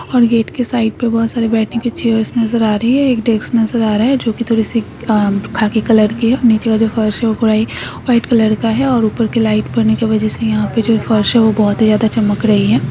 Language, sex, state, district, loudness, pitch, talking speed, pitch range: Hindi, female, Maharashtra, Solapur, -14 LUFS, 225 Hz, 285 wpm, 220-235 Hz